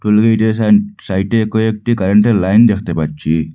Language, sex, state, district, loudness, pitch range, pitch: Bengali, male, Assam, Hailakandi, -13 LUFS, 95-110 Hz, 105 Hz